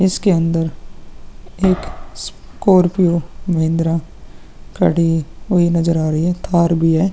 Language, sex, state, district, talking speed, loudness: Hindi, male, Uttar Pradesh, Muzaffarnagar, 120 wpm, -16 LUFS